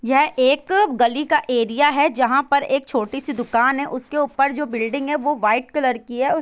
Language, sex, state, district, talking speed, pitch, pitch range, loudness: Hindi, female, Bihar, Saran, 235 wpm, 275 Hz, 245-290 Hz, -19 LUFS